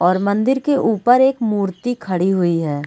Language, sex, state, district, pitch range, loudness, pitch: Hindi, female, Bihar, Gaya, 180-245 Hz, -17 LUFS, 205 Hz